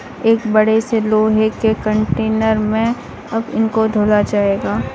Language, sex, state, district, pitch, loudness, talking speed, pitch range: Bhojpuri, female, Bihar, Saran, 220 Hz, -16 LUFS, 135 wpm, 215-225 Hz